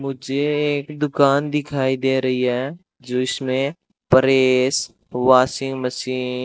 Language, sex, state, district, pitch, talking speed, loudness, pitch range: Hindi, male, Rajasthan, Bikaner, 135 Hz, 110 wpm, -20 LUFS, 130-145 Hz